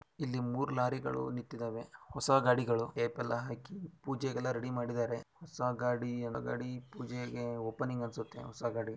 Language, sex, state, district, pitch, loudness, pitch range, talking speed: Kannada, male, Karnataka, Shimoga, 120 Hz, -36 LUFS, 120-130 Hz, 120 wpm